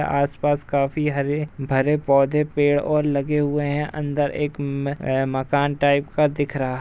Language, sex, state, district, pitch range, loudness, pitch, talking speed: Hindi, male, Uttar Pradesh, Jalaun, 140-150 Hz, -22 LUFS, 145 Hz, 175 wpm